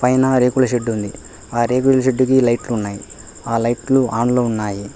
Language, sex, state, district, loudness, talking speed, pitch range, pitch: Telugu, male, Telangana, Hyderabad, -17 LUFS, 170 wpm, 110-130 Hz, 120 Hz